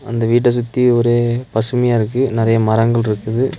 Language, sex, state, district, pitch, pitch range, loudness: Tamil, male, Tamil Nadu, Nilgiris, 120 Hz, 115-120 Hz, -15 LUFS